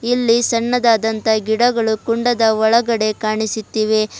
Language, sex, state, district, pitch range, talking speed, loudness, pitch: Kannada, female, Karnataka, Bidar, 220-235 Hz, 85 wpm, -16 LUFS, 225 Hz